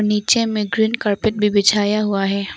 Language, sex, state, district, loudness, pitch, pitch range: Hindi, female, Arunachal Pradesh, Longding, -17 LUFS, 210 Hz, 200-220 Hz